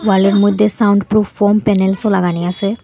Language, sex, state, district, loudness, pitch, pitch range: Bengali, female, Assam, Hailakandi, -14 LUFS, 200 Hz, 195-210 Hz